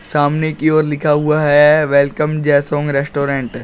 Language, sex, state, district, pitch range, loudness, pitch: Hindi, male, Uttar Pradesh, Shamli, 140-150 Hz, -14 LUFS, 150 Hz